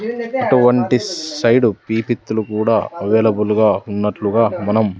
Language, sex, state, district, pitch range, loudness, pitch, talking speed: Telugu, male, Andhra Pradesh, Sri Satya Sai, 105-125 Hz, -16 LUFS, 110 Hz, 95 wpm